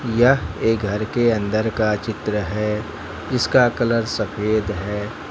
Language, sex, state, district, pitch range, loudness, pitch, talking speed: Hindi, male, Jharkhand, Ranchi, 105-115 Hz, -20 LUFS, 110 Hz, 125 wpm